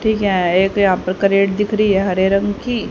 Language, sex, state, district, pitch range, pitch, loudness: Hindi, female, Haryana, Jhajjar, 190-210 Hz, 195 Hz, -16 LUFS